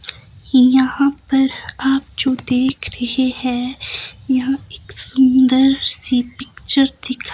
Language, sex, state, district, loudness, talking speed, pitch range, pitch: Hindi, female, Himachal Pradesh, Shimla, -16 LUFS, 105 wpm, 255-270 Hz, 260 Hz